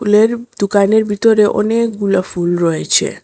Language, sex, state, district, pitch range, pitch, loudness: Bengali, female, Assam, Hailakandi, 200-220 Hz, 210 Hz, -14 LUFS